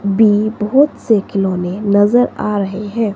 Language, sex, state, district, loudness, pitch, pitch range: Hindi, female, Himachal Pradesh, Shimla, -15 LUFS, 210 Hz, 200-220 Hz